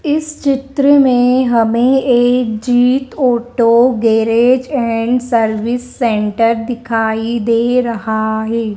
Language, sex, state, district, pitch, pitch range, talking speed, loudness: Hindi, female, Madhya Pradesh, Dhar, 240 Hz, 230-255 Hz, 100 wpm, -13 LUFS